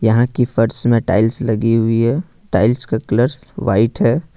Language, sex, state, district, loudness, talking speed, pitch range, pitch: Hindi, male, Jharkhand, Ranchi, -16 LUFS, 180 wpm, 110-130 Hz, 115 Hz